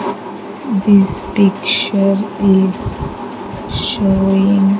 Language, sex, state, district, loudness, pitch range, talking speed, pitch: English, female, Andhra Pradesh, Sri Satya Sai, -14 LUFS, 195-205 Hz, 60 wpm, 200 Hz